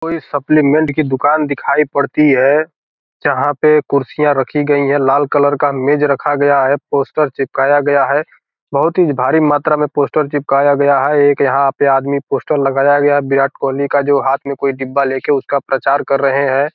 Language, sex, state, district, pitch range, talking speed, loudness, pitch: Hindi, male, Bihar, Gopalganj, 140-145 Hz, 195 wpm, -13 LUFS, 140 Hz